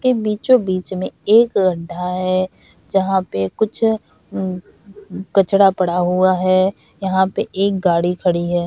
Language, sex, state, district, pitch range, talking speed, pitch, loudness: Hindi, female, Bihar, Bhagalpur, 180-200 Hz, 145 wpm, 185 Hz, -18 LUFS